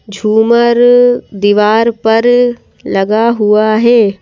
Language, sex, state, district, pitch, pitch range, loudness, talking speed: Hindi, female, Madhya Pradesh, Bhopal, 225 Hz, 210-235 Hz, -10 LUFS, 85 wpm